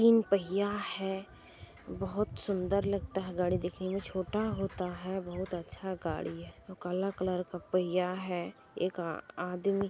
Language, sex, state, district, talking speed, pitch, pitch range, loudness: Maithili, female, Bihar, Supaul, 150 wpm, 185 Hz, 180-195 Hz, -34 LUFS